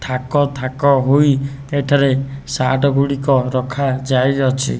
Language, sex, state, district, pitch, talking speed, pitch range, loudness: Odia, male, Odisha, Nuapada, 135 Hz, 85 wpm, 130-140 Hz, -16 LUFS